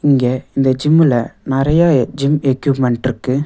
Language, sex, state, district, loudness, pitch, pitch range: Tamil, male, Tamil Nadu, Nilgiris, -15 LUFS, 135 Hz, 130-145 Hz